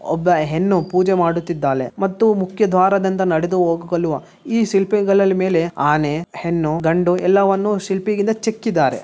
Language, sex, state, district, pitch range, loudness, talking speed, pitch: Kannada, male, Karnataka, Bellary, 165-195 Hz, -18 LUFS, 125 wpm, 185 Hz